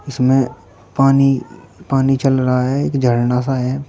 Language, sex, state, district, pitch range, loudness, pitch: Hindi, male, Uttar Pradesh, Shamli, 125-135 Hz, -16 LUFS, 130 Hz